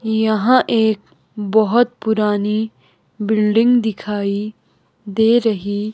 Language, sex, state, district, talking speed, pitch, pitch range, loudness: Hindi, female, Himachal Pradesh, Shimla, 80 wpm, 215 Hz, 210-225 Hz, -17 LUFS